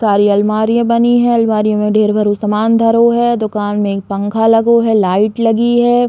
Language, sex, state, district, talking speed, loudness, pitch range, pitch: Bundeli, female, Uttar Pradesh, Hamirpur, 195 wpm, -12 LUFS, 210-235 Hz, 220 Hz